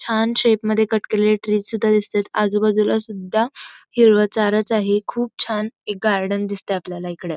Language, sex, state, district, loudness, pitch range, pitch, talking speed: Marathi, female, Karnataka, Belgaum, -19 LUFS, 205-220 Hz, 215 Hz, 155 wpm